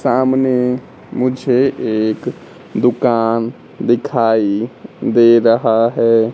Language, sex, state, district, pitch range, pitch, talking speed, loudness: Hindi, male, Bihar, Kaimur, 115-125 Hz, 120 Hz, 75 wpm, -15 LUFS